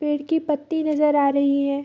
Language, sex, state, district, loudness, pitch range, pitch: Hindi, female, Bihar, Bhagalpur, -21 LUFS, 280-305 Hz, 295 Hz